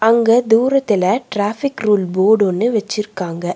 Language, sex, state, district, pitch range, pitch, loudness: Tamil, female, Tamil Nadu, Nilgiris, 195-235 Hz, 215 Hz, -16 LUFS